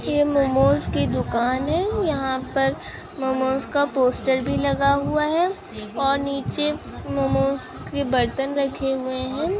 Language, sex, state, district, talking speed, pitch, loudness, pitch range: Hindi, female, Goa, North and South Goa, 135 wpm, 270 Hz, -22 LUFS, 255-290 Hz